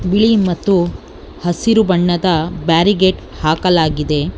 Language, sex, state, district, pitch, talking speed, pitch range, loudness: Kannada, female, Karnataka, Bangalore, 175 Hz, 80 wpm, 165-190 Hz, -15 LUFS